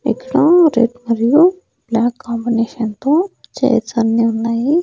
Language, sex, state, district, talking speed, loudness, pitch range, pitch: Telugu, female, Andhra Pradesh, Annamaya, 110 wpm, -15 LUFS, 230-290 Hz, 240 Hz